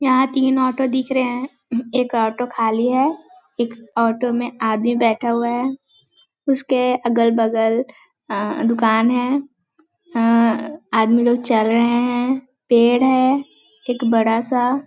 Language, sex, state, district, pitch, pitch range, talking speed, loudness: Hindi, female, Chhattisgarh, Balrampur, 245 Hz, 230-260 Hz, 140 wpm, -18 LUFS